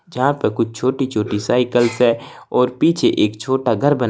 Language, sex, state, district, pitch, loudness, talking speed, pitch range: Hindi, male, Uttar Pradesh, Saharanpur, 125 Hz, -18 LUFS, 190 wpm, 115-135 Hz